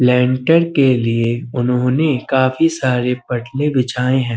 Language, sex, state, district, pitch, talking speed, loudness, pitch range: Hindi, male, Uttar Pradesh, Budaun, 125 Hz, 125 wpm, -16 LUFS, 125-135 Hz